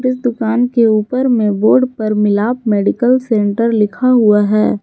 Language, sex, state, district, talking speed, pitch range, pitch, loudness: Hindi, female, Jharkhand, Garhwa, 160 wpm, 210-245 Hz, 225 Hz, -13 LUFS